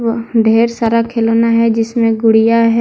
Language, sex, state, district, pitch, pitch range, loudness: Hindi, female, Jharkhand, Deoghar, 230 Hz, 225-230 Hz, -12 LUFS